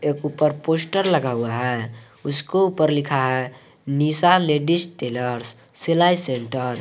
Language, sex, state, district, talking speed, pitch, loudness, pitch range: Hindi, male, Jharkhand, Garhwa, 140 wpm, 145 Hz, -20 LUFS, 125-160 Hz